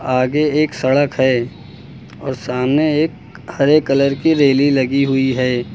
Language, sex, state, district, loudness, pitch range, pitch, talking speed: Hindi, male, Uttar Pradesh, Lucknow, -16 LUFS, 130-145 Hz, 135 Hz, 145 wpm